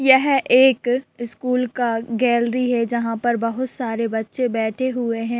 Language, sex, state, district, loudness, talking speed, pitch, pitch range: Hindi, female, Bihar, Araria, -20 LUFS, 155 wpm, 240 Hz, 230-255 Hz